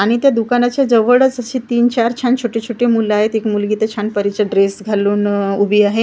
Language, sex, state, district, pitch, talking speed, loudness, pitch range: Marathi, female, Maharashtra, Gondia, 225 Hz, 200 wpm, -15 LUFS, 205-240 Hz